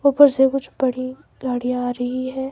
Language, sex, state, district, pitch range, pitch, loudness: Hindi, male, Himachal Pradesh, Shimla, 250-265 Hz, 260 Hz, -20 LUFS